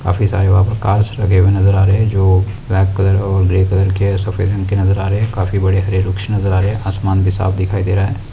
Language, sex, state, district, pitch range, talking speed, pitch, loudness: Hindi, male, West Bengal, Kolkata, 95-100 Hz, 210 wpm, 95 Hz, -15 LUFS